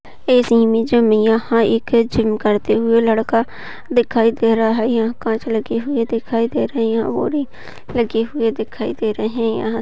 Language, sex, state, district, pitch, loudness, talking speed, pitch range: Hindi, female, Maharashtra, Nagpur, 230 Hz, -17 LUFS, 160 wpm, 225-235 Hz